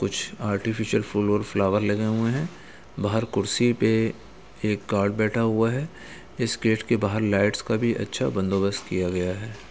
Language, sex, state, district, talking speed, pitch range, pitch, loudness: Hindi, male, Bihar, Gaya, 165 wpm, 100-110 Hz, 105 Hz, -25 LUFS